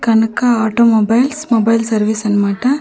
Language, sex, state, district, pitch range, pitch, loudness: Telugu, female, Andhra Pradesh, Manyam, 220-240 Hz, 230 Hz, -14 LUFS